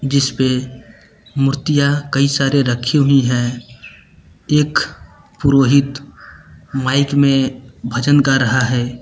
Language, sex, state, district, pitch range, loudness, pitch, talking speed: Hindi, male, Uttar Pradesh, Lucknow, 125-140 Hz, -15 LUFS, 135 Hz, 100 wpm